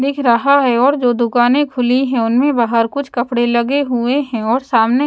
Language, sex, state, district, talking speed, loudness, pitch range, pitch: Hindi, female, Odisha, Sambalpur, 200 wpm, -15 LUFS, 235-275 Hz, 245 Hz